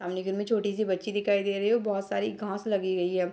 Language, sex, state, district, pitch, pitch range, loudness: Hindi, female, Bihar, Purnia, 200 Hz, 185-210 Hz, -29 LUFS